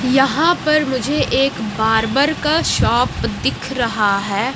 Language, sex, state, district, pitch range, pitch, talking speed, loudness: Hindi, female, Odisha, Malkangiri, 225-295 Hz, 260 Hz, 130 wpm, -17 LUFS